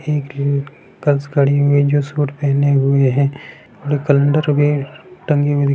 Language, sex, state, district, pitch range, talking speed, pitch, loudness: Hindi, male, Bihar, Sitamarhi, 140-145 Hz, 145 wpm, 145 Hz, -16 LUFS